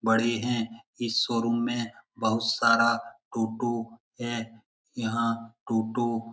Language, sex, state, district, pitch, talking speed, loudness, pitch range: Hindi, male, Bihar, Lakhisarai, 115 Hz, 115 wpm, -28 LUFS, 115-120 Hz